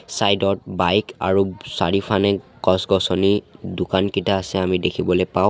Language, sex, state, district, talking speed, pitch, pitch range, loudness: Assamese, male, Assam, Sonitpur, 120 wpm, 95 Hz, 90-100 Hz, -20 LUFS